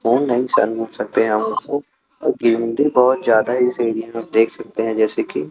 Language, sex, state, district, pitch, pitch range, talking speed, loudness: Hindi, male, Chhattisgarh, Raipur, 115 Hz, 115-125 Hz, 185 wpm, -18 LUFS